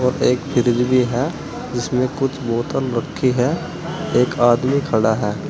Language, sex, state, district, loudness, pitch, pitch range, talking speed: Hindi, male, Uttar Pradesh, Saharanpur, -19 LUFS, 125 Hz, 120-140 Hz, 155 wpm